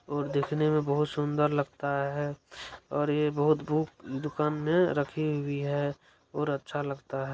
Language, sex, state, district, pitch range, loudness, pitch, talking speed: Hindi, male, Bihar, Saran, 140-150 Hz, -30 LUFS, 145 Hz, 165 wpm